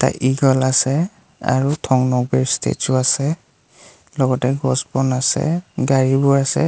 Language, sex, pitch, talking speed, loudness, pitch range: Assamese, male, 135 Hz, 100 wpm, -18 LUFS, 130-140 Hz